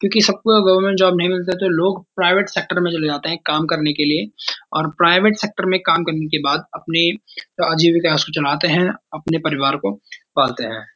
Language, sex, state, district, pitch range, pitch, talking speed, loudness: Hindi, male, Uttarakhand, Uttarkashi, 155-185 Hz, 170 Hz, 205 wpm, -17 LUFS